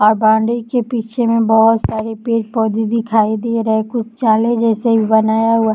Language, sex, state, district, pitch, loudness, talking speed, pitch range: Hindi, female, Uttar Pradesh, Deoria, 225 Hz, -15 LUFS, 200 wpm, 220-230 Hz